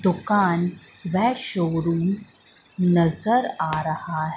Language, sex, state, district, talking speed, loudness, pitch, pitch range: Hindi, female, Madhya Pradesh, Katni, 80 wpm, -23 LUFS, 175 Hz, 165-200 Hz